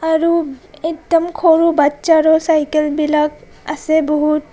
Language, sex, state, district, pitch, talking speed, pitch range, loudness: Assamese, female, Assam, Kamrup Metropolitan, 315 Hz, 105 wpm, 300-325 Hz, -15 LUFS